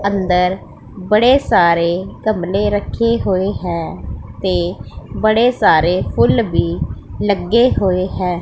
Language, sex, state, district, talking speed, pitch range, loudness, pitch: Punjabi, female, Punjab, Pathankot, 105 wpm, 170-210 Hz, -16 LUFS, 185 Hz